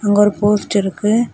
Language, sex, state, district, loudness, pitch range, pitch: Tamil, female, Tamil Nadu, Kanyakumari, -16 LUFS, 205-210 Hz, 205 Hz